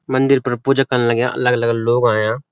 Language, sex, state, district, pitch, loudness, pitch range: Garhwali, male, Uttarakhand, Uttarkashi, 125 Hz, -16 LUFS, 115-130 Hz